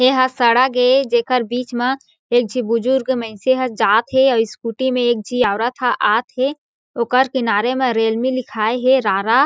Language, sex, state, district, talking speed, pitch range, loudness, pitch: Chhattisgarhi, female, Chhattisgarh, Jashpur, 190 wpm, 235-260 Hz, -17 LUFS, 250 Hz